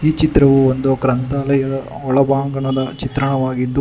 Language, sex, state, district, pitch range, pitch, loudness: Kannada, male, Karnataka, Bangalore, 130-140 Hz, 135 Hz, -16 LUFS